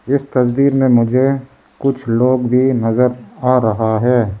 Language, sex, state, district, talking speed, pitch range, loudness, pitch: Hindi, male, Arunachal Pradesh, Lower Dibang Valley, 150 wpm, 120-130 Hz, -15 LUFS, 125 Hz